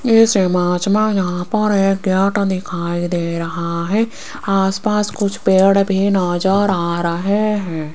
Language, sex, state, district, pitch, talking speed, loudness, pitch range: Hindi, female, Rajasthan, Jaipur, 195 Hz, 130 wpm, -17 LUFS, 175-205 Hz